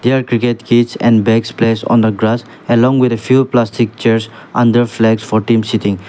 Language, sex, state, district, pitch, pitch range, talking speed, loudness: English, male, Nagaland, Dimapur, 115 Hz, 110-120 Hz, 185 wpm, -13 LUFS